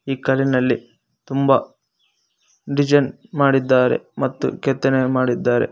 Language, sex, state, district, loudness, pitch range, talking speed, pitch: Kannada, male, Karnataka, Koppal, -19 LUFS, 130-140 Hz, 85 wpm, 135 Hz